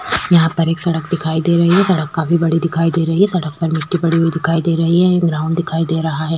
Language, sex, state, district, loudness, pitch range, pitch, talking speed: Hindi, female, Chhattisgarh, Sukma, -15 LUFS, 160-170 Hz, 165 Hz, 280 wpm